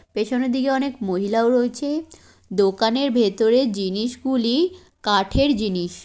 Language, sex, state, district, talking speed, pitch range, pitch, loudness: Bengali, female, West Bengal, Kolkata, 110 wpm, 210-265 Hz, 235 Hz, -21 LUFS